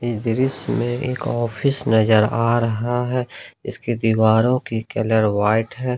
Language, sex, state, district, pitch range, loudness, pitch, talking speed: Hindi, male, Jharkhand, Ranchi, 110-125 Hz, -20 LUFS, 120 Hz, 150 wpm